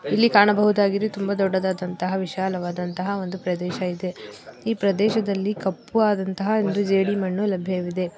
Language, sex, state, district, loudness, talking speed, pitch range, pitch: Kannada, female, Karnataka, Belgaum, -23 LUFS, 110 wpm, 185-205 Hz, 195 Hz